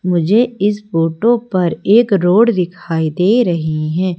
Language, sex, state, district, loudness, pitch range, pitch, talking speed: Hindi, female, Madhya Pradesh, Umaria, -14 LUFS, 170-215 Hz, 180 Hz, 145 wpm